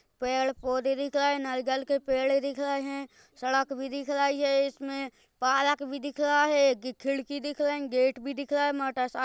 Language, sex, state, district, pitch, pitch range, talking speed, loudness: Hindi, female, Chhattisgarh, Rajnandgaon, 275 Hz, 265-280 Hz, 210 wpm, -28 LUFS